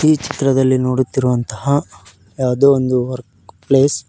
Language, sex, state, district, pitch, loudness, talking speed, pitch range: Kannada, male, Karnataka, Koppal, 130 Hz, -16 LUFS, 115 wpm, 125-140 Hz